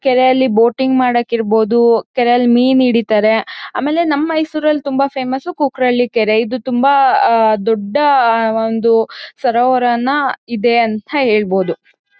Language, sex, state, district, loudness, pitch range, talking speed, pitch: Kannada, female, Karnataka, Mysore, -14 LUFS, 225-275 Hz, 120 wpm, 245 Hz